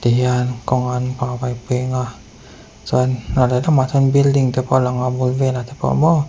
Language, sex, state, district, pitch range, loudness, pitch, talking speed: Mizo, male, Mizoram, Aizawl, 125-130 Hz, -18 LUFS, 125 Hz, 220 wpm